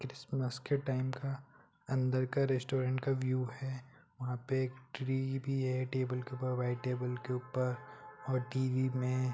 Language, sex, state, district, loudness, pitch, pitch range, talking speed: Hindi, male, Jharkhand, Sahebganj, -36 LUFS, 130 Hz, 130-135 Hz, 165 wpm